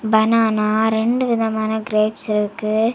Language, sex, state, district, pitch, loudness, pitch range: Tamil, female, Tamil Nadu, Kanyakumari, 220 Hz, -18 LUFS, 215-225 Hz